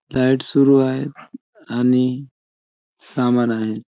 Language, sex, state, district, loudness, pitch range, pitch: Marathi, male, Maharashtra, Chandrapur, -18 LUFS, 115-135 Hz, 125 Hz